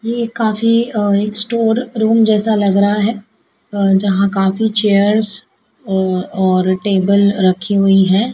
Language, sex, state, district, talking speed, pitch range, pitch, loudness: Hindi, female, Madhya Pradesh, Dhar, 145 wpm, 195-220 Hz, 205 Hz, -14 LUFS